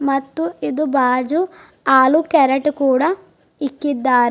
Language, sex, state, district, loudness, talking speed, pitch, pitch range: Kannada, female, Karnataka, Bidar, -17 LUFS, 95 wpm, 280 Hz, 265-315 Hz